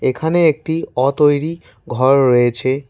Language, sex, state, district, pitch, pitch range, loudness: Bengali, male, West Bengal, Cooch Behar, 140 Hz, 130-160 Hz, -15 LUFS